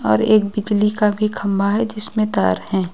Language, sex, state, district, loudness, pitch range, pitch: Hindi, female, Uttar Pradesh, Lucknow, -18 LUFS, 195-215 Hz, 210 Hz